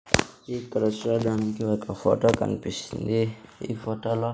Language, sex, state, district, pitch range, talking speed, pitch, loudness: Telugu, male, Andhra Pradesh, Sri Satya Sai, 110-115 Hz, 125 wpm, 110 Hz, -27 LUFS